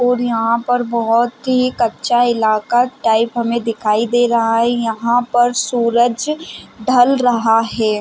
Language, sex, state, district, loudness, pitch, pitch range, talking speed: Hindi, female, Chhattisgarh, Raigarh, -15 LUFS, 235 Hz, 225-245 Hz, 150 wpm